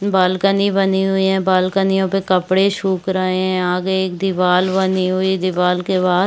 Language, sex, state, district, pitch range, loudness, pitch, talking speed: Hindi, female, Chhattisgarh, Bastar, 185-190 Hz, -17 LUFS, 190 Hz, 200 wpm